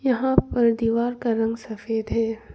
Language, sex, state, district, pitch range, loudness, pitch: Hindi, female, Arunachal Pradesh, Longding, 225-240 Hz, -23 LUFS, 230 Hz